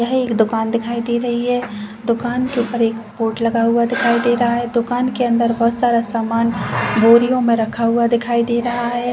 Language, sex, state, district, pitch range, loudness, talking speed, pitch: Hindi, female, Uttar Pradesh, Jalaun, 230-240 Hz, -17 LUFS, 210 wpm, 235 Hz